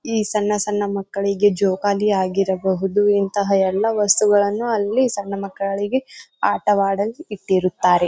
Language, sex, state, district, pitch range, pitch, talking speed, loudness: Kannada, female, Karnataka, Bijapur, 195-210 Hz, 200 Hz, 110 wpm, -19 LUFS